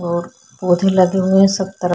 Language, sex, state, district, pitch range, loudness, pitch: Hindi, female, Chhattisgarh, Sukma, 175-190 Hz, -15 LUFS, 185 Hz